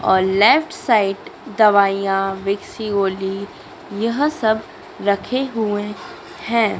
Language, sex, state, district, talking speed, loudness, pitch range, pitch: Hindi, female, Madhya Pradesh, Dhar, 90 wpm, -18 LUFS, 195-225 Hz, 205 Hz